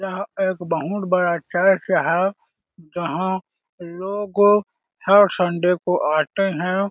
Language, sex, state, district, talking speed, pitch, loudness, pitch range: Hindi, male, Chhattisgarh, Balrampur, 115 wpm, 185 Hz, -20 LUFS, 175-195 Hz